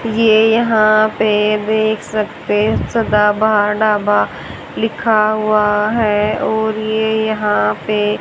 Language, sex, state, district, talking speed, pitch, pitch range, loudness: Hindi, male, Haryana, Jhajjar, 110 wpm, 215 Hz, 210-220 Hz, -15 LUFS